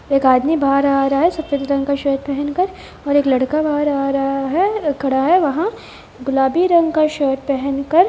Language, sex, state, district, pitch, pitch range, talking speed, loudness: Hindi, female, Bihar, Gopalganj, 280 Hz, 275-320 Hz, 215 wpm, -17 LUFS